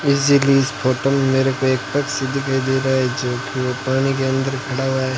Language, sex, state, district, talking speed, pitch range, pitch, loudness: Hindi, male, Rajasthan, Bikaner, 230 wpm, 130-135 Hz, 135 Hz, -19 LUFS